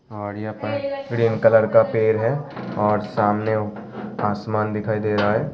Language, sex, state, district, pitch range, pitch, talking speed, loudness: Hindi, male, Uttar Pradesh, Hamirpur, 105-115 Hz, 110 Hz, 160 wpm, -21 LUFS